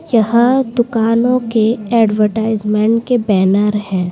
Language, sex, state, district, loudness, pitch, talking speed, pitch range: Hindi, female, Bihar, Saran, -14 LUFS, 225 Hz, 115 wpm, 210-235 Hz